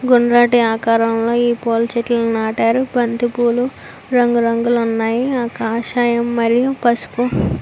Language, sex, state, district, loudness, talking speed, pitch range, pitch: Telugu, female, Andhra Pradesh, Visakhapatnam, -16 LUFS, 125 wpm, 230-240 Hz, 235 Hz